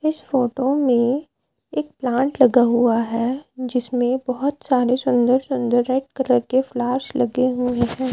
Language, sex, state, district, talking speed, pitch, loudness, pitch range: Hindi, male, Himachal Pradesh, Shimla, 145 wpm, 255 Hz, -20 LUFS, 245-265 Hz